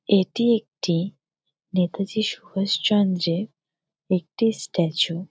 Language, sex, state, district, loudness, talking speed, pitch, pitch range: Bengali, female, West Bengal, Jalpaiguri, -23 LUFS, 90 wpm, 185 Hz, 170-205 Hz